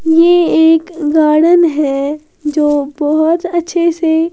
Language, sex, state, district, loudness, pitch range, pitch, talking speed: Hindi, female, Haryana, Jhajjar, -12 LUFS, 300-340 Hz, 320 Hz, 110 wpm